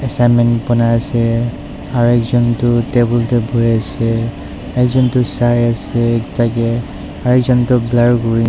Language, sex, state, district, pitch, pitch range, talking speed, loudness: Nagamese, male, Nagaland, Dimapur, 120 Hz, 115-120 Hz, 150 wpm, -14 LUFS